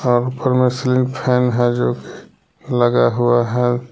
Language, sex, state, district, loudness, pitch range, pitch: Hindi, male, Jharkhand, Palamu, -17 LUFS, 120-125 Hz, 125 Hz